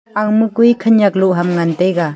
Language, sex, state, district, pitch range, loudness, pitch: Wancho, female, Arunachal Pradesh, Longding, 175-220 Hz, -13 LUFS, 200 Hz